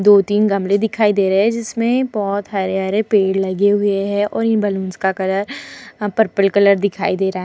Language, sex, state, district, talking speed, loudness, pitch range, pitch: Hindi, female, Bihar, Vaishali, 200 wpm, -17 LUFS, 195-210 Hz, 200 Hz